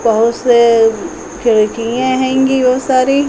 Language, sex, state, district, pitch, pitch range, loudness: Hindi, female, Uttar Pradesh, Hamirpur, 245 Hz, 230-260 Hz, -12 LUFS